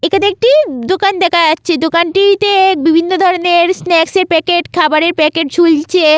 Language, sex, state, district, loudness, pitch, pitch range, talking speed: Bengali, female, West Bengal, Malda, -11 LUFS, 345 Hz, 320-375 Hz, 145 wpm